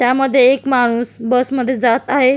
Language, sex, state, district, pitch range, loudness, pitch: Marathi, female, Maharashtra, Solapur, 245-265 Hz, -15 LUFS, 255 Hz